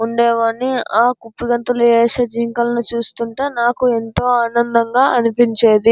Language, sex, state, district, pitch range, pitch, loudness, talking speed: Telugu, male, Andhra Pradesh, Anantapur, 230-245 Hz, 235 Hz, -15 LUFS, 100 wpm